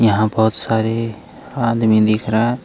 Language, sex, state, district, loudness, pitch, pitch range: Hindi, male, Jharkhand, Ranchi, -16 LUFS, 110 Hz, 110-115 Hz